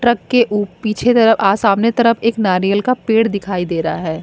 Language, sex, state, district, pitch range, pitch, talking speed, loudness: Hindi, female, Bihar, Katihar, 195-230 Hz, 215 Hz, 225 wpm, -15 LUFS